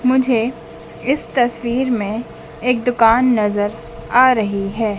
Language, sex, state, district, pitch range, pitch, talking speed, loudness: Hindi, female, Madhya Pradesh, Dhar, 205-250 Hz, 230 Hz, 120 wpm, -17 LUFS